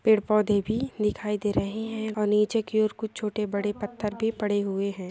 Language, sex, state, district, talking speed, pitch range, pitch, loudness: Hindi, female, Telangana, Nalgonda, 200 wpm, 205-220 Hz, 210 Hz, -27 LUFS